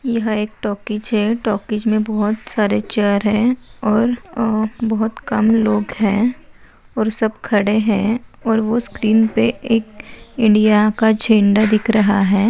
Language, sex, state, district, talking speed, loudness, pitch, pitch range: Hindi, female, Maharashtra, Pune, 145 wpm, -17 LUFS, 220 Hz, 210-225 Hz